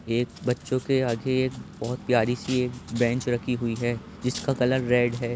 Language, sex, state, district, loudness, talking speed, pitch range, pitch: Hindi, male, Uttar Pradesh, Jyotiba Phule Nagar, -26 LUFS, 190 wpm, 120-125 Hz, 125 Hz